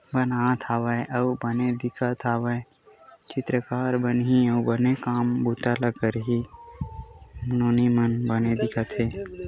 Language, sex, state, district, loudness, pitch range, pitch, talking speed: Chhattisgarhi, male, Chhattisgarh, Korba, -25 LUFS, 115-125 Hz, 120 Hz, 125 wpm